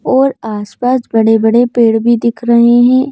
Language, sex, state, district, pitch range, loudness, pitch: Hindi, female, Madhya Pradesh, Bhopal, 225-250 Hz, -11 LUFS, 235 Hz